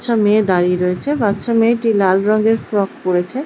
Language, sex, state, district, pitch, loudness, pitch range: Bengali, female, West Bengal, Purulia, 210 Hz, -16 LUFS, 185-225 Hz